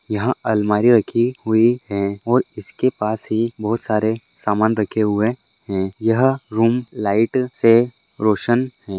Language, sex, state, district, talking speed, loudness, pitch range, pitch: Hindi, male, Maharashtra, Dhule, 140 wpm, -19 LUFS, 105-120 Hz, 115 Hz